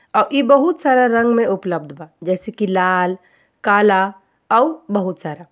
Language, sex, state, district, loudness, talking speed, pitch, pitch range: Bhojpuri, female, Jharkhand, Palamu, -17 LUFS, 165 wpm, 195 Hz, 180-235 Hz